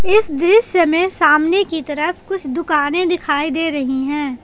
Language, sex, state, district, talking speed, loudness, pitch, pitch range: Hindi, female, Jharkhand, Palamu, 160 wpm, -16 LUFS, 320 Hz, 295-360 Hz